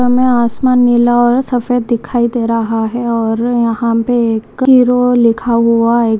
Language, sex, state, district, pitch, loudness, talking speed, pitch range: Hindi, female, Bihar, Supaul, 235 Hz, -12 LUFS, 175 wpm, 230-245 Hz